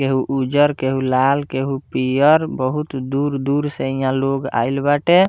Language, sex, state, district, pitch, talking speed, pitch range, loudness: Bhojpuri, male, Bihar, Muzaffarpur, 135 Hz, 145 wpm, 130-145 Hz, -18 LUFS